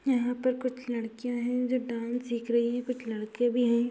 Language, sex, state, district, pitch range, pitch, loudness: Hindi, female, Bihar, Sitamarhi, 235-250 Hz, 245 Hz, -30 LUFS